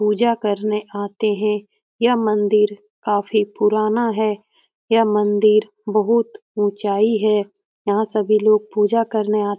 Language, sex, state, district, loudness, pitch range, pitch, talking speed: Hindi, female, Bihar, Jamui, -19 LUFS, 210-220 Hz, 210 Hz, 130 wpm